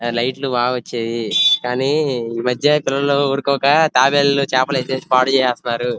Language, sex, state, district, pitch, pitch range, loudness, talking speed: Telugu, male, Andhra Pradesh, Krishna, 130 Hz, 120-140 Hz, -17 LUFS, 140 wpm